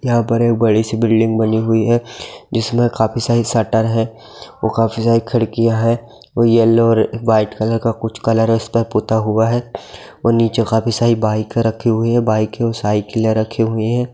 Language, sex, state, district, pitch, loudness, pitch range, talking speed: Hindi, male, Bihar, Gopalganj, 115 Hz, -16 LUFS, 110-115 Hz, 185 wpm